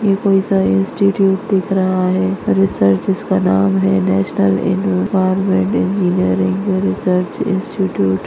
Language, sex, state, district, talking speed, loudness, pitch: Hindi, female, Maharashtra, Nagpur, 115 wpm, -15 LUFS, 185 Hz